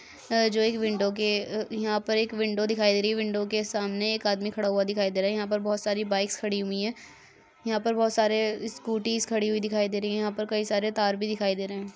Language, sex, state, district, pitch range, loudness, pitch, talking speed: Hindi, female, Chhattisgarh, Raigarh, 205-220 Hz, -27 LUFS, 210 Hz, 255 wpm